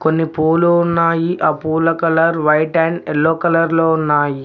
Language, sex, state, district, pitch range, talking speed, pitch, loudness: Telugu, male, Telangana, Mahabubabad, 155-165 Hz, 160 wpm, 165 Hz, -15 LUFS